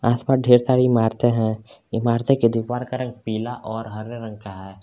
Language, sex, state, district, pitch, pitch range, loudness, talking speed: Hindi, male, Jharkhand, Palamu, 115 Hz, 110-125 Hz, -21 LUFS, 200 wpm